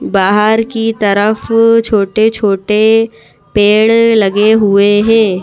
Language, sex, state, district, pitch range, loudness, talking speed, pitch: Hindi, female, Madhya Pradesh, Bhopal, 205-225 Hz, -10 LUFS, 100 wpm, 215 Hz